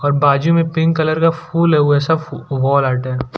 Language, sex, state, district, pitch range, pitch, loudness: Hindi, male, Gujarat, Valsad, 140-165 Hz, 150 Hz, -15 LUFS